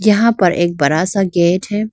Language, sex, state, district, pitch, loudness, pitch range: Hindi, female, Arunachal Pradesh, Lower Dibang Valley, 185 Hz, -14 LUFS, 175-210 Hz